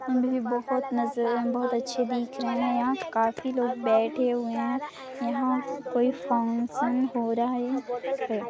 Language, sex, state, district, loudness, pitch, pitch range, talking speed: Hindi, female, Chhattisgarh, Sarguja, -27 LUFS, 250 Hz, 240-260 Hz, 135 wpm